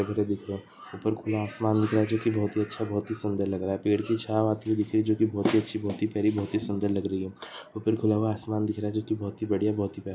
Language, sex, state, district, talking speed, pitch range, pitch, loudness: Hindi, male, Maharashtra, Aurangabad, 280 wpm, 100-110 Hz, 105 Hz, -28 LUFS